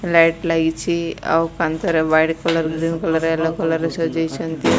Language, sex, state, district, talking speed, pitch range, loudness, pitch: Odia, female, Odisha, Malkangiri, 150 wpm, 160-165 Hz, -19 LUFS, 165 Hz